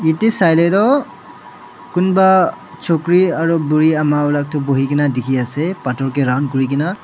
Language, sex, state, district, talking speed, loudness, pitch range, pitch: Nagamese, male, Nagaland, Dimapur, 145 wpm, -15 LUFS, 135-175 Hz, 150 Hz